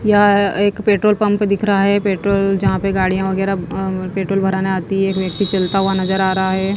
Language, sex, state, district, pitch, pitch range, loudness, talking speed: Hindi, female, Himachal Pradesh, Shimla, 195 Hz, 190-200 Hz, -16 LUFS, 210 wpm